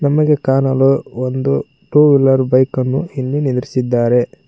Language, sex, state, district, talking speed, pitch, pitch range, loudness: Kannada, male, Karnataka, Koppal, 120 wpm, 130 Hz, 130-140 Hz, -15 LUFS